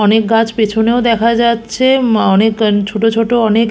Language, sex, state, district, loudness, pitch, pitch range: Bengali, female, West Bengal, Purulia, -12 LUFS, 225 Hz, 220-235 Hz